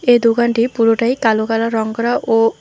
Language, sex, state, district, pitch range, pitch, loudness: Bengali, female, West Bengal, Alipurduar, 225-235 Hz, 230 Hz, -15 LUFS